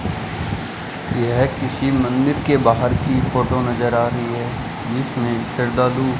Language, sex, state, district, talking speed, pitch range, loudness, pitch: Hindi, male, Rajasthan, Bikaner, 135 wpm, 120-130 Hz, -20 LUFS, 125 Hz